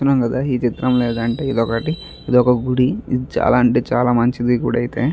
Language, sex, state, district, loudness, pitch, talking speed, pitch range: Telugu, male, Andhra Pradesh, Chittoor, -18 LUFS, 125 Hz, 130 wpm, 120-130 Hz